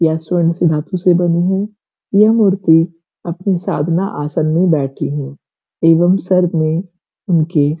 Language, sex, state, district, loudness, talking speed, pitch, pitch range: Hindi, female, Uttar Pradesh, Gorakhpur, -15 LUFS, 155 wpm, 170 Hz, 160-185 Hz